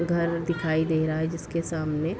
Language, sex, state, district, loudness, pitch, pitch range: Hindi, female, Bihar, Darbhanga, -27 LUFS, 165 Hz, 160-170 Hz